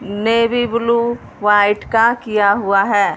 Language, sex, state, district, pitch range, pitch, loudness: Hindi, female, Punjab, Fazilka, 205-235 Hz, 220 Hz, -15 LUFS